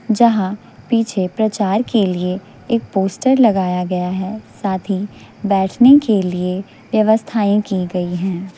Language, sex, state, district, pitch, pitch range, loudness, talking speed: Hindi, female, Chhattisgarh, Raipur, 200 Hz, 185-220 Hz, -17 LUFS, 135 wpm